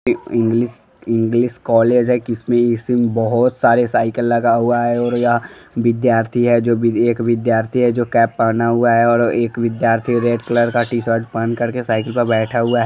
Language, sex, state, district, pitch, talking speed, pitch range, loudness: Bajjika, female, Bihar, Vaishali, 120 Hz, 190 wpm, 115-120 Hz, -16 LUFS